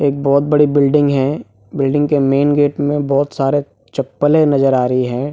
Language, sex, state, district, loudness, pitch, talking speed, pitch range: Hindi, male, Jharkhand, Jamtara, -15 LUFS, 140 Hz, 190 wpm, 135-145 Hz